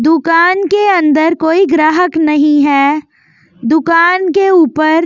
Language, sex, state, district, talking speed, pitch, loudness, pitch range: Hindi, female, Delhi, New Delhi, 120 wpm, 320 Hz, -10 LUFS, 300-355 Hz